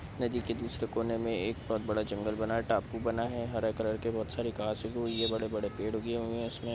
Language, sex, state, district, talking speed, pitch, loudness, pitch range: Hindi, male, Bihar, Araria, 240 wpm, 115 Hz, -34 LUFS, 110-115 Hz